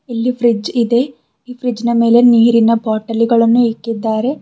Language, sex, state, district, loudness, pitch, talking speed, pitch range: Kannada, female, Karnataka, Bidar, -13 LUFS, 235 Hz, 150 wpm, 230-245 Hz